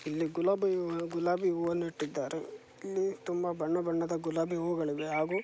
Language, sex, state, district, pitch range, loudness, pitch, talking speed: Kannada, male, Karnataka, Chamarajanagar, 165-180 Hz, -33 LUFS, 170 Hz, 145 wpm